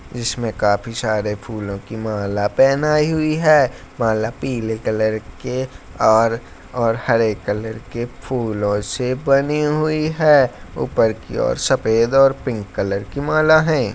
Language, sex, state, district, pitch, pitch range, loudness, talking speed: Hindi, male, Bihar, Darbhanga, 115 Hz, 110-135 Hz, -19 LUFS, 140 wpm